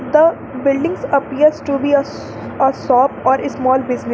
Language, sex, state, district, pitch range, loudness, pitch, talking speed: English, female, Jharkhand, Garhwa, 260-295 Hz, -16 LUFS, 275 Hz, 160 wpm